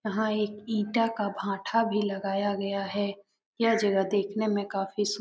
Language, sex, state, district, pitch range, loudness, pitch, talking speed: Hindi, male, Bihar, Jamui, 200-215 Hz, -28 LUFS, 205 Hz, 185 wpm